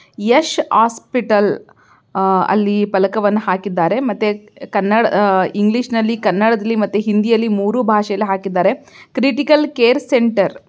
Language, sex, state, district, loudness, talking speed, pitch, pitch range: Kannada, female, Karnataka, Belgaum, -15 LUFS, 85 wpm, 210 Hz, 200-235 Hz